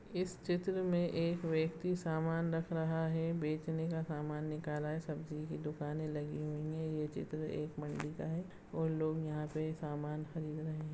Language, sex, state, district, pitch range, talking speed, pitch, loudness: Hindi, female, Chhattisgarh, Raigarh, 150-165 Hz, 185 wpm, 155 Hz, -39 LUFS